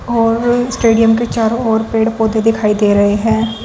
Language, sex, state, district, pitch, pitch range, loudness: Hindi, female, Uttar Pradesh, Saharanpur, 225 Hz, 220-230 Hz, -13 LUFS